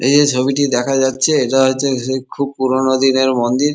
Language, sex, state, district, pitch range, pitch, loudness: Bengali, male, West Bengal, Kolkata, 130-140 Hz, 130 Hz, -15 LUFS